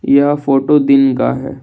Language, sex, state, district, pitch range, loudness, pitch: Hindi, male, Assam, Kamrup Metropolitan, 135-145 Hz, -12 LUFS, 140 Hz